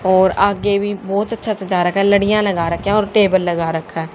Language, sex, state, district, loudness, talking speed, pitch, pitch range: Hindi, female, Haryana, Jhajjar, -16 LUFS, 245 wpm, 195 Hz, 180-205 Hz